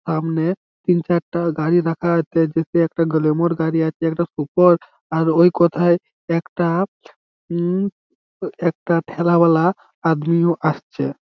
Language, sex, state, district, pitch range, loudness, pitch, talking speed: Bengali, male, West Bengal, Malda, 160-175 Hz, -19 LUFS, 170 Hz, 115 wpm